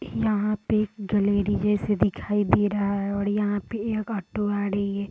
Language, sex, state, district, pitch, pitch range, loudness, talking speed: Hindi, female, Bihar, Sitamarhi, 205 Hz, 200-210 Hz, -25 LUFS, 200 wpm